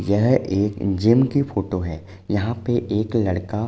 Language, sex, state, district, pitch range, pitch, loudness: Hindi, male, Uttar Pradesh, Jalaun, 95-115 Hz, 105 Hz, -21 LUFS